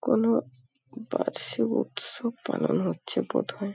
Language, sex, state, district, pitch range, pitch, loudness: Bengali, female, West Bengal, Paschim Medinipur, 155-235 Hz, 225 Hz, -29 LUFS